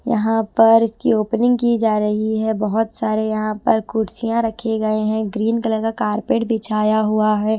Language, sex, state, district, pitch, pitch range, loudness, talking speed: Hindi, female, Bihar, West Champaran, 220 Hz, 215-225 Hz, -18 LUFS, 180 wpm